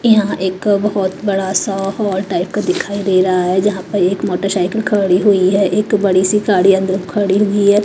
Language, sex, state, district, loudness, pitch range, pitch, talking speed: Hindi, female, Maharashtra, Mumbai Suburban, -15 LUFS, 185-205 Hz, 195 Hz, 205 wpm